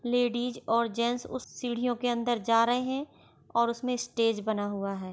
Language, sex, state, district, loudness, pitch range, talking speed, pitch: Hindi, female, Bihar, Gopalganj, -29 LUFS, 230-245 Hz, 185 wpm, 240 Hz